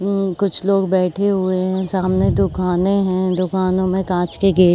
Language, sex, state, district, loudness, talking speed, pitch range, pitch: Hindi, female, Uttar Pradesh, Jyotiba Phule Nagar, -18 LUFS, 190 wpm, 185-195 Hz, 185 Hz